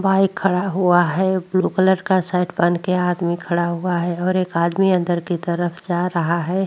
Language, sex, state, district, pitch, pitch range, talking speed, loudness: Hindi, female, Uttar Pradesh, Jyotiba Phule Nagar, 180 Hz, 175-185 Hz, 205 wpm, -19 LUFS